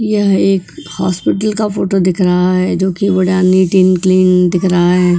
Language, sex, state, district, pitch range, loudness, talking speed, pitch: Hindi, female, Goa, North and South Goa, 180-190 Hz, -12 LUFS, 185 wpm, 185 Hz